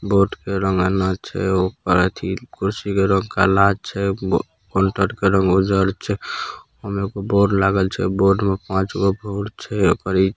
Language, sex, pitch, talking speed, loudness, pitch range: Angika, male, 95 Hz, 155 wpm, -20 LUFS, 95-100 Hz